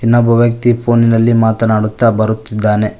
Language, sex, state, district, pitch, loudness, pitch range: Kannada, male, Karnataka, Koppal, 115 Hz, -12 LUFS, 110-115 Hz